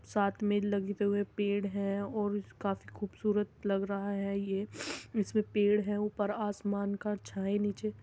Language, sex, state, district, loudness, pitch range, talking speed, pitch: Hindi, female, Uttar Pradesh, Muzaffarnagar, -34 LUFS, 200-210 Hz, 150 wpm, 205 Hz